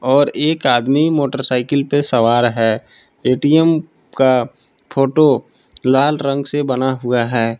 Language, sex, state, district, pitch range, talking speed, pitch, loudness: Hindi, male, Jharkhand, Palamu, 125-145 Hz, 135 wpm, 135 Hz, -16 LUFS